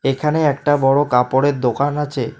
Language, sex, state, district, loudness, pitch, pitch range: Bengali, male, West Bengal, Alipurduar, -17 LUFS, 140 Hz, 135-145 Hz